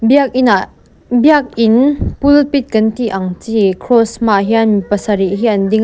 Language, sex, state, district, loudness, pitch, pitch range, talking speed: Mizo, female, Mizoram, Aizawl, -12 LUFS, 225 Hz, 205-255 Hz, 185 wpm